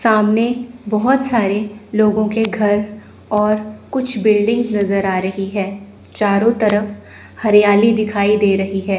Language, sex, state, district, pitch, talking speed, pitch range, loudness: Hindi, female, Chandigarh, Chandigarh, 210 Hz, 135 wpm, 205-220 Hz, -16 LUFS